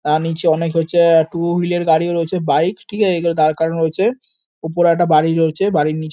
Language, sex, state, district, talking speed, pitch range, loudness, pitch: Bengali, male, West Bengal, North 24 Parganas, 205 wpm, 160-175 Hz, -16 LUFS, 165 Hz